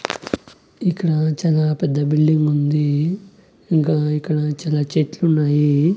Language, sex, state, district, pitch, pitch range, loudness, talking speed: Telugu, male, Andhra Pradesh, Annamaya, 155 Hz, 150-165 Hz, -19 LUFS, 100 wpm